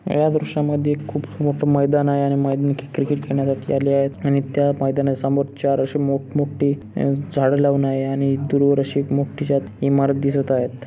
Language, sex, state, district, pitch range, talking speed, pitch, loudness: Marathi, male, Maharashtra, Solapur, 135-145 Hz, 180 wpm, 140 Hz, -20 LUFS